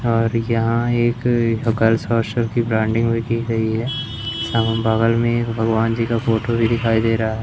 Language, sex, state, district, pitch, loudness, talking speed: Hindi, male, Madhya Pradesh, Umaria, 115 Hz, -19 LUFS, 185 wpm